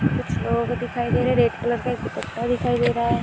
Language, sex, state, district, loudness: Hindi, female, Jharkhand, Sahebganj, -23 LUFS